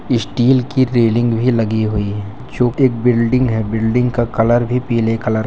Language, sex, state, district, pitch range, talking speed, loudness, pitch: Hindi, male, Bihar, Purnia, 110-125 Hz, 195 wpm, -15 LUFS, 120 Hz